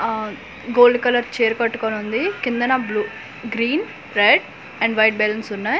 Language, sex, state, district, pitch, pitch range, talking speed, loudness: Telugu, female, Andhra Pradesh, Manyam, 230 Hz, 220-245 Hz, 155 wpm, -19 LUFS